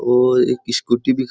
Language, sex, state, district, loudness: Rajasthani, male, Rajasthan, Churu, -17 LUFS